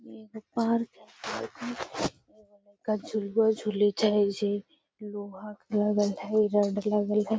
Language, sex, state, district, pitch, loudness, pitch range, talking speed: Magahi, female, Bihar, Gaya, 210 Hz, -29 LUFS, 205-215 Hz, 115 wpm